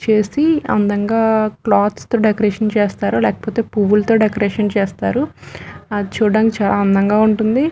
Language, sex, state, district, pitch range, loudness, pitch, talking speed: Telugu, female, Telangana, Nalgonda, 205-220 Hz, -16 LUFS, 215 Hz, 110 wpm